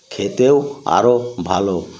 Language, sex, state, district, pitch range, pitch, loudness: Bengali, male, West Bengal, North 24 Parganas, 95-130 Hz, 120 Hz, -17 LUFS